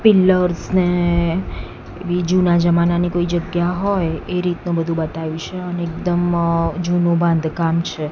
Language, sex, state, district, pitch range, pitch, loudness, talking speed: Gujarati, female, Gujarat, Gandhinagar, 170-180 Hz, 175 Hz, -18 LUFS, 140 wpm